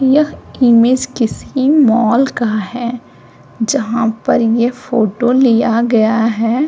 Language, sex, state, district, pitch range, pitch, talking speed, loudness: Hindi, female, Uttar Pradesh, Jyotiba Phule Nagar, 225-260 Hz, 235 Hz, 115 wpm, -13 LUFS